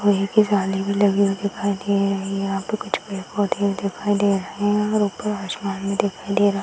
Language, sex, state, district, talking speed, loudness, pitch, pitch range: Hindi, female, Bihar, Saran, 235 wpm, -22 LUFS, 200 Hz, 195-205 Hz